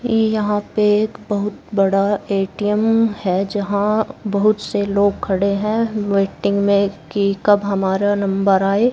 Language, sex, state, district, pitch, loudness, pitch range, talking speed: Hindi, female, Haryana, Jhajjar, 205 Hz, -18 LUFS, 200-210 Hz, 135 wpm